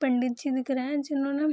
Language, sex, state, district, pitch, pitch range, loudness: Hindi, female, Bihar, Saharsa, 275 Hz, 260-285 Hz, -28 LUFS